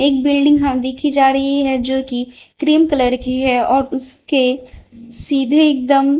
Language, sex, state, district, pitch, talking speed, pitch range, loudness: Hindi, female, Bihar, Patna, 270 Hz, 165 wpm, 255-280 Hz, -15 LUFS